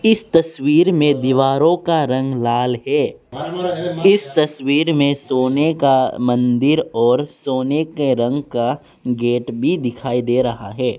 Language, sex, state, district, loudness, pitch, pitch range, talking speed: Hindi, male, Arunachal Pradesh, Lower Dibang Valley, -17 LUFS, 135 Hz, 125-155 Hz, 135 wpm